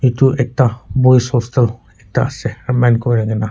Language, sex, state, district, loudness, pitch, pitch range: Nagamese, male, Nagaland, Kohima, -15 LUFS, 120 Hz, 115-130 Hz